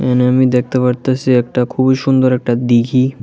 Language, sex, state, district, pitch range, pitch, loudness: Bengali, male, Tripura, West Tripura, 125-130 Hz, 125 Hz, -14 LUFS